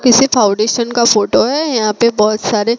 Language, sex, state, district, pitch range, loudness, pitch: Hindi, female, Gujarat, Gandhinagar, 215-245 Hz, -12 LUFS, 235 Hz